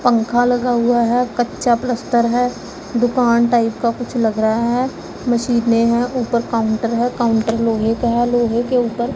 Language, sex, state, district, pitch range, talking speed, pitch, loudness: Hindi, female, Punjab, Pathankot, 230-245 Hz, 170 wpm, 235 Hz, -17 LUFS